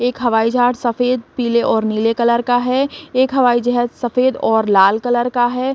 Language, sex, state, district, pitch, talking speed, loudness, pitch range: Hindi, female, Bihar, Saran, 245 Hz, 200 wpm, -16 LUFS, 235-250 Hz